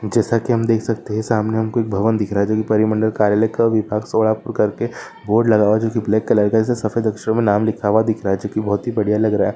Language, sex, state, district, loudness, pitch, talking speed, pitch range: Hindi, male, Maharashtra, Solapur, -18 LUFS, 110 Hz, 295 wpm, 105-115 Hz